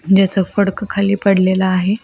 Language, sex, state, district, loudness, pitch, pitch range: Marathi, female, Maharashtra, Pune, -15 LUFS, 195 Hz, 190-200 Hz